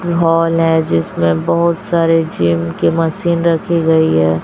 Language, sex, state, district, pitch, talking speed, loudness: Hindi, female, Chhattisgarh, Raipur, 165 Hz, 150 wpm, -14 LUFS